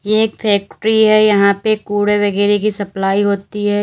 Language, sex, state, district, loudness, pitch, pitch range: Hindi, female, Uttar Pradesh, Lalitpur, -14 LUFS, 205 Hz, 205-215 Hz